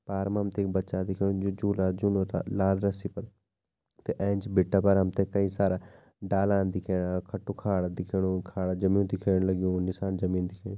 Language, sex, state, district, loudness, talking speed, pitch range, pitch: Garhwali, male, Uttarakhand, Tehri Garhwal, -29 LUFS, 170 wpm, 95-100 Hz, 95 Hz